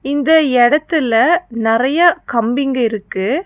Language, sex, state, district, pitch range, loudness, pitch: Tamil, female, Tamil Nadu, Nilgiris, 230-315 Hz, -14 LUFS, 270 Hz